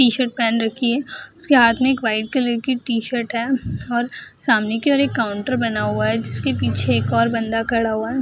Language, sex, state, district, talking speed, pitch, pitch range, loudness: Hindi, female, Bihar, Jahanabad, 210 wpm, 230 Hz, 220-255 Hz, -19 LUFS